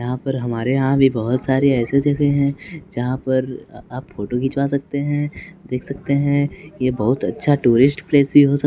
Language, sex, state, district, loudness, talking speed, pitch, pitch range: Hindi, male, Bihar, West Champaran, -19 LUFS, 195 wpm, 135 Hz, 125-140 Hz